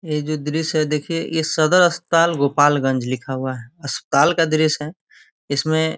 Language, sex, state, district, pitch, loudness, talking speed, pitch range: Hindi, male, Bihar, Gopalganj, 155 Hz, -19 LUFS, 180 wpm, 140-160 Hz